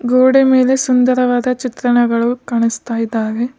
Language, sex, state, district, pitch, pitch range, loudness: Kannada, female, Karnataka, Bidar, 245 Hz, 235-255 Hz, -14 LUFS